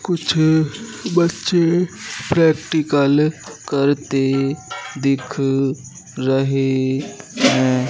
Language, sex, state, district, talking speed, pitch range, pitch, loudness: Hindi, male, Madhya Pradesh, Katni, 55 wpm, 135-160 Hz, 145 Hz, -18 LUFS